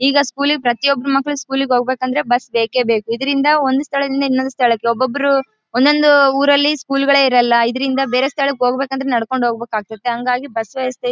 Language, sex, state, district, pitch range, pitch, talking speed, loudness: Kannada, female, Karnataka, Bellary, 245-275 Hz, 265 Hz, 190 wpm, -16 LUFS